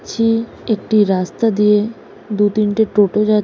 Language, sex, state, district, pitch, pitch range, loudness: Bengali, female, West Bengal, Jalpaiguri, 210 Hz, 205-220 Hz, -16 LUFS